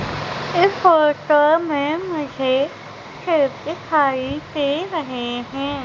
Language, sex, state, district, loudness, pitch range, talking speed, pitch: Hindi, female, Madhya Pradesh, Umaria, -19 LUFS, 275-320 Hz, 90 wpm, 295 Hz